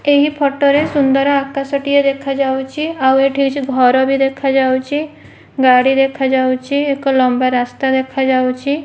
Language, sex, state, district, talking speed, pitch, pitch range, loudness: Odia, female, Odisha, Malkangiri, 120 wpm, 270 Hz, 265-280 Hz, -14 LUFS